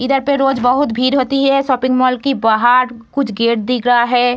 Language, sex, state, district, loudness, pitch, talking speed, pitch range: Hindi, female, Bihar, Samastipur, -14 LUFS, 255 Hz, 220 wpm, 245-270 Hz